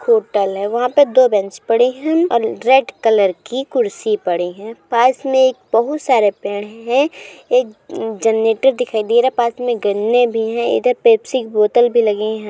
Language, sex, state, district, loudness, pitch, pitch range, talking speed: Hindi, female, Uttar Pradesh, Muzaffarnagar, -16 LUFS, 240 Hz, 215-265 Hz, 190 wpm